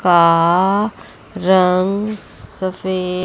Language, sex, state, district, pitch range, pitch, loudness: Hindi, female, Chandigarh, Chandigarh, 180-195 Hz, 185 Hz, -16 LUFS